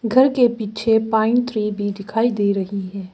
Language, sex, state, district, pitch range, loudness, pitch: Hindi, female, Arunachal Pradesh, Lower Dibang Valley, 200-230 Hz, -19 LUFS, 220 Hz